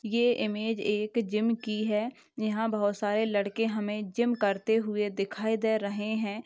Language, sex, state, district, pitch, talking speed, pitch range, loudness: Hindi, female, Maharashtra, Nagpur, 215 Hz, 165 wpm, 210-225 Hz, -29 LUFS